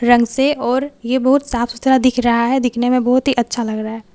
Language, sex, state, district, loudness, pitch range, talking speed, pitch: Hindi, female, Bihar, Katihar, -16 LUFS, 235-260 Hz, 245 wpm, 245 Hz